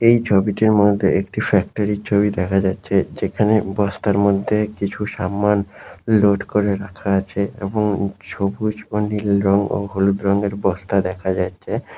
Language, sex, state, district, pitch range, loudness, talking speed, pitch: Bengali, male, West Bengal, Jalpaiguri, 100-105 Hz, -19 LUFS, 150 wpm, 100 Hz